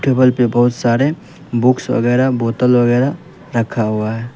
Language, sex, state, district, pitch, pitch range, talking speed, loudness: Hindi, male, Uttar Pradesh, Lalitpur, 125 Hz, 120-130 Hz, 150 wpm, -15 LUFS